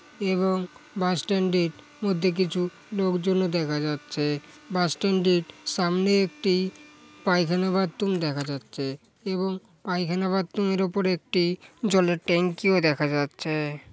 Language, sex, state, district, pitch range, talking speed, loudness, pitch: Bengali, male, West Bengal, Paschim Medinipur, 165-190 Hz, 125 wpm, -26 LUFS, 180 Hz